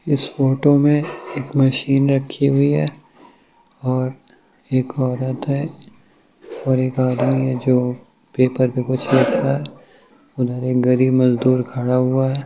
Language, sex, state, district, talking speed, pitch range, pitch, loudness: Hindi, male, Uttar Pradesh, Ghazipur, 135 wpm, 125-135 Hz, 130 Hz, -18 LUFS